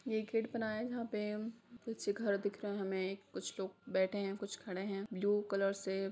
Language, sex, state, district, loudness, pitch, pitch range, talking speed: Hindi, female, Bihar, Sitamarhi, -39 LUFS, 205 Hz, 195-220 Hz, 215 wpm